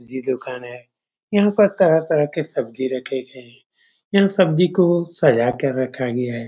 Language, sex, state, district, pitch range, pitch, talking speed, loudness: Hindi, male, Bihar, Saran, 125-180 Hz, 130 Hz, 195 wpm, -19 LUFS